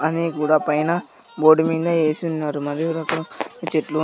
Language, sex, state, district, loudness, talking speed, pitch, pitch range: Telugu, male, Andhra Pradesh, Sri Satya Sai, -21 LUFS, 150 wpm, 160 Hz, 155-165 Hz